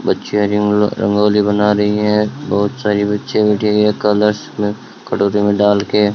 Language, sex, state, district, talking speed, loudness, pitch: Hindi, male, Rajasthan, Bikaner, 175 wpm, -15 LUFS, 105 Hz